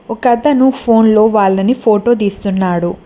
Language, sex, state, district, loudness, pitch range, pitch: Telugu, female, Telangana, Mahabubabad, -12 LUFS, 200-240 Hz, 220 Hz